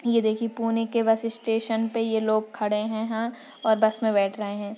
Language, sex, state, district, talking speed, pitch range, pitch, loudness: Hindi, female, Maharashtra, Pune, 215 wpm, 220-230 Hz, 225 Hz, -25 LUFS